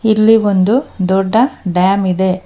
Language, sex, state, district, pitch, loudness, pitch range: Kannada, female, Karnataka, Bangalore, 195 Hz, -13 LUFS, 185-225 Hz